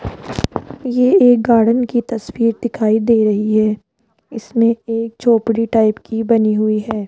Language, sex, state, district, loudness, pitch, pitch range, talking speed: Hindi, female, Rajasthan, Jaipur, -15 LUFS, 230 Hz, 215-235 Hz, 145 wpm